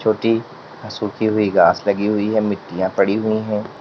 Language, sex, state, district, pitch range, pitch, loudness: Hindi, male, Uttar Pradesh, Lalitpur, 100-110 Hz, 105 Hz, -18 LUFS